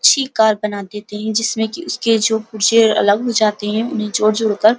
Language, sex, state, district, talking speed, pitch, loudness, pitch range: Hindi, female, Uttar Pradesh, Muzaffarnagar, 200 wpm, 220 Hz, -16 LUFS, 210-225 Hz